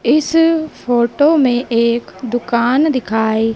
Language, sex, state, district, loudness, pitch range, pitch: Hindi, female, Madhya Pradesh, Dhar, -15 LUFS, 235-295 Hz, 245 Hz